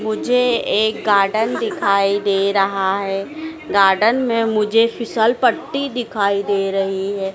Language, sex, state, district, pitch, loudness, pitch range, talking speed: Hindi, female, Madhya Pradesh, Dhar, 210 Hz, -17 LUFS, 195-230 Hz, 130 wpm